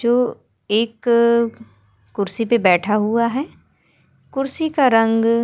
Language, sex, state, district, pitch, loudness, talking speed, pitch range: Hindi, female, Uttar Pradesh, Muzaffarnagar, 235 Hz, -18 LUFS, 120 wpm, 215-240 Hz